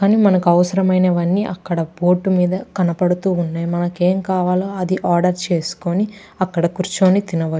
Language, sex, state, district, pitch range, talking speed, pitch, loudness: Telugu, female, Andhra Pradesh, Chittoor, 175-190 Hz, 150 wpm, 180 Hz, -18 LUFS